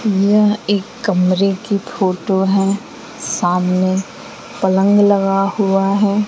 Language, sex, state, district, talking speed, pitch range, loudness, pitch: Hindi, female, Bihar, West Champaran, 105 wpm, 190-205 Hz, -16 LUFS, 195 Hz